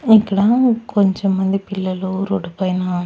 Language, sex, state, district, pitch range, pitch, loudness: Telugu, female, Andhra Pradesh, Annamaya, 190-210 Hz, 195 Hz, -17 LUFS